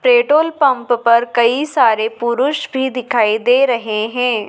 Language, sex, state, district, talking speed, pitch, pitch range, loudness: Hindi, female, Madhya Pradesh, Dhar, 145 wpm, 245 Hz, 235-275 Hz, -15 LUFS